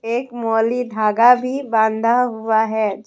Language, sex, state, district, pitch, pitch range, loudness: Hindi, female, Jharkhand, Deoghar, 225 Hz, 220-245 Hz, -17 LUFS